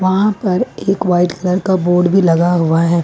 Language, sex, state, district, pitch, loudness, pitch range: Hindi, female, Jharkhand, Ranchi, 180 Hz, -14 LUFS, 175-190 Hz